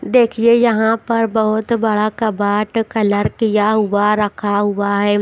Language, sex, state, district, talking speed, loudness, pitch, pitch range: Hindi, female, Haryana, Jhajjar, 140 wpm, -16 LUFS, 215 Hz, 205-225 Hz